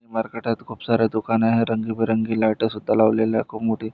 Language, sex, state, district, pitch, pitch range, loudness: Marathi, male, Maharashtra, Nagpur, 110 Hz, 110-115 Hz, -22 LUFS